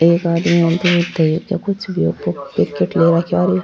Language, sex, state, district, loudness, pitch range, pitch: Rajasthani, female, Rajasthan, Churu, -16 LUFS, 160-175 Hz, 170 Hz